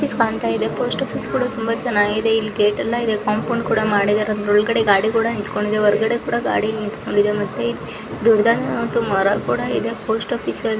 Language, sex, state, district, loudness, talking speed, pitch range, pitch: Kannada, female, Karnataka, Raichur, -19 LUFS, 150 wpm, 210-230 Hz, 215 Hz